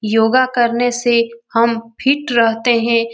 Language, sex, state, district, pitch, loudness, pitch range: Hindi, female, Bihar, Lakhisarai, 235 Hz, -15 LUFS, 230-245 Hz